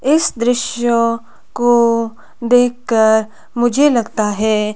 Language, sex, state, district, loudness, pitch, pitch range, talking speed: Hindi, female, Himachal Pradesh, Shimla, -15 LUFS, 235 Hz, 225-245 Hz, 90 wpm